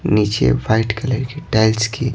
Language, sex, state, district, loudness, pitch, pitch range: Hindi, male, Bihar, Patna, -17 LUFS, 110 Hz, 105-125 Hz